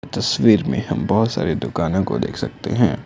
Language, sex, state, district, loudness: Hindi, male, Assam, Kamrup Metropolitan, -19 LUFS